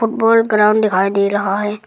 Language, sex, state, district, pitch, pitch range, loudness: Hindi, female, Arunachal Pradesh, Lower Dibang Valley, 210 Hz, 200-225 Hz, -14 LUFS